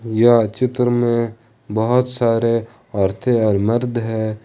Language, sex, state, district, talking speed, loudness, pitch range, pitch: Hindi, male, Jharkhand, Ranchi, 120 wpm, -18 LUFS, 110-120 Hz, 115 Hz